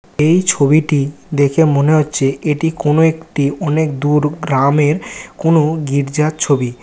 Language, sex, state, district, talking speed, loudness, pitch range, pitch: Bengali, male, West Bengal, Kolkata, 130 wpm, -14 LUFS, 140-160 Hz, 150 Hz